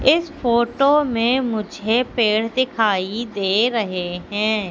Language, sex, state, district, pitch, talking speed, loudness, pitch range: Hindi, female, Madhya Pradesh, Katni, 230 Hz, 115 wpm, -19 LUFS, 210-250 Hz